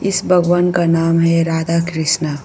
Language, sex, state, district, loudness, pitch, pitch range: Hindi, female, Arunachal Pradesh, Lower Dibang Valley, -15 LUFS, 165 Hz, 165-175 Hz